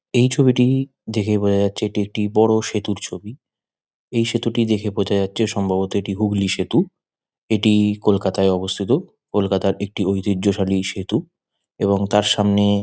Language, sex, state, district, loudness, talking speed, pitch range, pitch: Bengali, male, West Bengal, Kolkata, -20 LUFS, 160 wpm, 100-110 Hz, 105 Hz